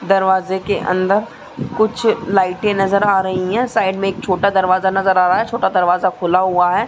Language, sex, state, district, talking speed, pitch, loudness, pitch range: Hindi, female, Uttar Pradesh, Muzaffarnagar, 200 wpm, 190 Hz, -16 LUFS, 185-200 Hz